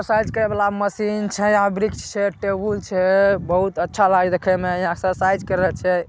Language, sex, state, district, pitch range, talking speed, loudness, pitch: Maithili, male, Bihar, Saharsa, 185-205 Hz, 185 wpm, -20 LUFS, 195 Hz